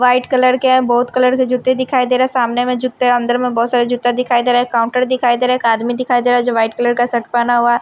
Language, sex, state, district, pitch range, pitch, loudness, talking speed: Hindi, female, Himachal Pradesh, Shimla, 240-255 Hz, 245 Hz, -14 LUFS, 315 wpm